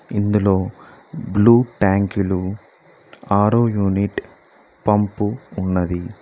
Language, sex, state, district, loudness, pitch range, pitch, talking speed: Telugu, male, Telangana, Mahabubabad, -19 LUFS, 95-105 Hz, 100 Hz, 70 wpm